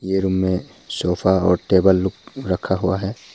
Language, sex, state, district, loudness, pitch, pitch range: Hindi, male, Arunachal Pradesh, Papum Pare, -19 LUFS, 95 Hz, 90-95 Hz